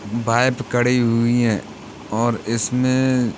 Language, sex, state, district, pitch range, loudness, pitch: Hindi, male, Uttar Pradesh, Hamirpur, 115-125 Hz, -19 LUFS, 120 Hz